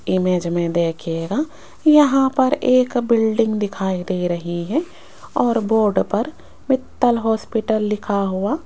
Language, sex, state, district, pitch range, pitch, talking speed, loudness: Hindi, female, Rajasthan, Jaipur, 185-255 Hz, 220 Hz, 130 wpm, -19 LUFS